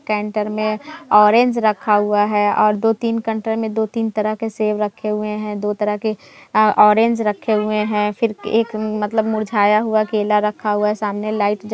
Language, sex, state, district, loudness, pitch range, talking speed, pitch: Hindi, female, Bihar, Jamui, -18 LUFS, 210-220 Hz, 200 wpm, 215 Hz